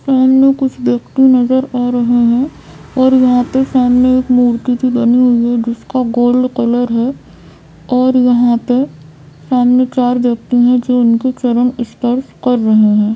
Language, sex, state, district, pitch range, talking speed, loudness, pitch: Hindi, female, Bihar, Sitamarhi, 240-255 Hz, 170 wpm, -12 LUFS, 245 Hz